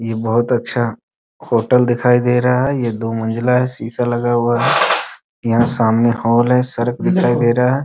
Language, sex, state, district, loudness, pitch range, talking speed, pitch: Hindi, male, Bihar, Muzaffarpur, -16 LUFS, 115-125 Hz, 205 wpm, 120 Hz